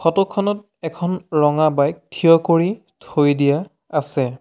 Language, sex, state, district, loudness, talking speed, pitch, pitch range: Assamese, male, Assam, Sonitpur, -19 LUFS, 135 wpm, 160 Hz, 145-185 Hz